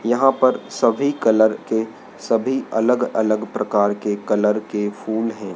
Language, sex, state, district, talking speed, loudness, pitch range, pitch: Hindi, male, Madhya Pradesh, Dhar, 150 wpm, -19 LUFS, 105-120 Hz, 110 Hz